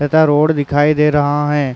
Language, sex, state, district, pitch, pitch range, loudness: Hindi, male, Uttar Pradesh, Muzaffarnagar, 145 Hz, 145-150 Hz, -14 LUFS